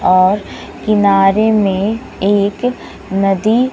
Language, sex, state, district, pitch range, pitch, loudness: Hindi, female, Bihar, West Champaran, 195-215 Hz, 200 Hz, -14 LUFS